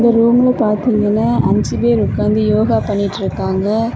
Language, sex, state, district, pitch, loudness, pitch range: Tamil, female, Tamil Nadu, Kanyakumari, 215 Hz, -15 LUFS, 210-235 Hz